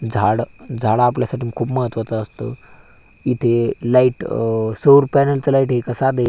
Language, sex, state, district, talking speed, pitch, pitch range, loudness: Marathi, male, Maharashtra, Aurangabad, 150 wpm, 120 Hz, 115-130 Hz, -18 LUFS